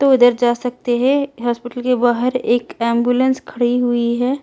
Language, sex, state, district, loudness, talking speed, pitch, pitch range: Hindi, female, Delhi, New Delhi, -17 LUFS, 175 wpm, 245 Hz, 240-255 Hz